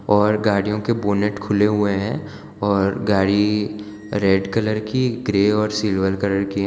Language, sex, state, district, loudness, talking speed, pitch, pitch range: Hindi, male, Gujarat, Valsad, -20 LUFS, 160 wpm, 105 Hz, 100-105 Hz